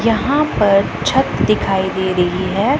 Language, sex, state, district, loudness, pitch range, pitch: Hindi, female, Punjab, Pathankot, -16 LUFS, 190-225 Hz, 195 Hz